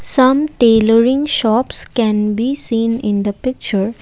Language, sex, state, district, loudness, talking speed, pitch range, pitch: English, female, Assam, Kamrup Metropolitan, -14 LUFS, 135 wpm, 220-255 Hz, 230 Hz